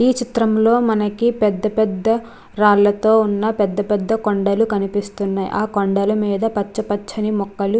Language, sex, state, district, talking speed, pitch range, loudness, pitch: Telugu, female, Andhra Pradesh, Krishna, 145 wpm, 205-220 Hz, -18 LUFS, 210 Hz